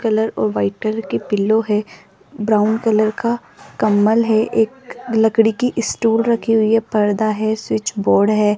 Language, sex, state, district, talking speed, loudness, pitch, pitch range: Hindi, female, Rajasthan, Jaipur, 170 wpm, -17 LUFS, 220 Hz, 210-225 Hz